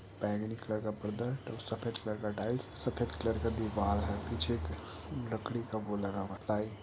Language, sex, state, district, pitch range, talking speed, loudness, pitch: Hindi, male, Uttar Pradesh, Etah, 100-115 Hz, 210 wpm, -36 LUFS, 110 Hz